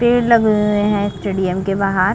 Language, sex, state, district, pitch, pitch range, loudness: Hindi, female, Chhattisgarh, Bastar, 205 Hz, 195-215 Hz, -16 LUFS